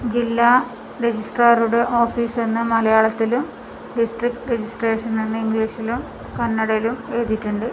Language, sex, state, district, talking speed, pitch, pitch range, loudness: Malayalam, female, Kerala, Kasaragod, 85 wpm, 230 Hz, 225-235 Hz, -20 LUFS